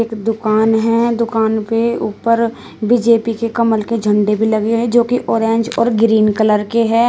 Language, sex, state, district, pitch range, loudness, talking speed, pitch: Hindi, female, Uttar Pradesh, Shamli, 220-230 Hz, -15 LUFS, 180 wpm, 225 Hz